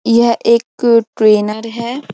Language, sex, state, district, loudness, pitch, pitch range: Hindi, female, Uttar Pradesh, Jyotiba Phule Nagar, -13 LUFS, 230 Hz, 220-235 Hz